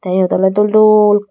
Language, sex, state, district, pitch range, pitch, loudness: Chakma, female, Tripura, Dhalai, 190-210 Hz, 205 Hz, -11 LUFS